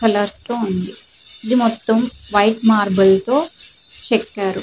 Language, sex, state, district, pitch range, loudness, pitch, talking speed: Telugu, female, Andhra Pradesh, Srikakulam, 205-235 Hz, -17 LUFS, 220 Hz, 105 wpm